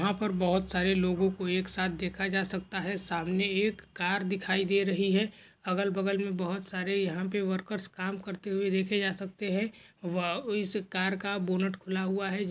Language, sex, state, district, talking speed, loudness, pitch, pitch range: Hindi, male, Maharashtra, Dhule, 200 wpm, -31 LUFS, 190 Hz, 185-200 Hz